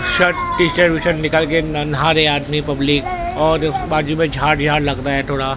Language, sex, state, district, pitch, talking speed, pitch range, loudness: Hindi, male, Maharashtra, Mumbai Suburban, 155 Hz, 235 wpm, 145-165 Hz, -16 LUFS